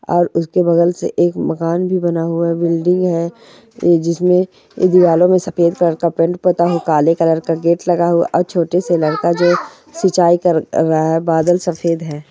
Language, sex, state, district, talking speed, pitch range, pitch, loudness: Hindi, female, Bihar, Purnia, 185 wpm, 165-175 Hz, 170 Hz, -15 LUFS